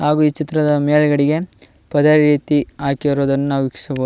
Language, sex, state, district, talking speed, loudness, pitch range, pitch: Kannada, male, Karnataka, Koppal, 135 wpm, -16 LUFS, 140-150 Hz, 145 Hz